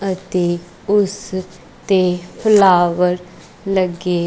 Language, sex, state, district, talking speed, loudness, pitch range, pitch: Punjabi, female, Punjab, Kapurthala, 70 wpm, -17 LUFS, 175-195 Hz, 180 Hz